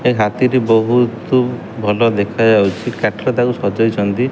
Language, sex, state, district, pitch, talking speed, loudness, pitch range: Odia, male, Odisha, Khordha, 115 Hz, 140 wpm, -15 LUFS, 105-125 Hz